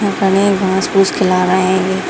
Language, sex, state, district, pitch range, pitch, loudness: Hindi, female, Bihar, Darbhanga, 185-195 Hz, 190 Hz, -13 LUFS